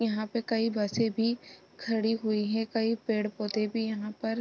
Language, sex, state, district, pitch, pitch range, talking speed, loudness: Hindi, female, Bihar, East Champaran, 225 Hz, 215-225 Hz, 190 wpm, -30 LUFS